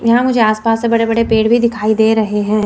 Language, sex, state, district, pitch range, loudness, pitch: Hindi, female, Chandigarh, Chandigarh, 215-230 Hz, -13 LUFS, 225 Hz